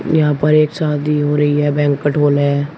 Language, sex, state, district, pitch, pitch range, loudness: Hindi, male, Uttar Pradesh, Shamli, 145 Hz, 145-150 Hz, -15 LUFS